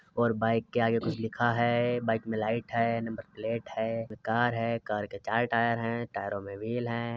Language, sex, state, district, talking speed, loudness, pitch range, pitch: Hindi, male, Uttar Pradesh, Varanasi, 210 wpm, -30 LUFS, 110-120 Hz, 115 Hz